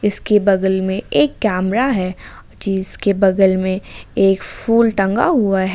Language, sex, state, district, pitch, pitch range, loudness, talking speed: Hindi, female, Jharkhand, Ranchi, 195 Hz, 190-210 Hz, -16 LUFS, 145 wpm